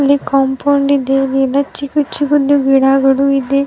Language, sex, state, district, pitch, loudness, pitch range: Kannada, female, Karnataka, Raichur, 275 Hz, -13 LUFS, 270-280 Hz